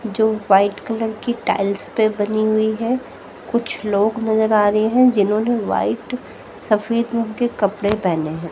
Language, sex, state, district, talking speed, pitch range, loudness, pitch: Hindi, female, Haryana, Jhajjar, 160 wpm, 205-230 Hz, -19 LUFS, 220 Hz